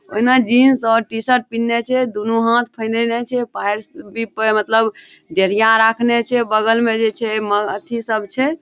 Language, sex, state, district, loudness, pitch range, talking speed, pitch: Maithili, female, Bihar, Madhepura, -17 LUFS, 220-240 Hz, 180 wpm, 230 Hz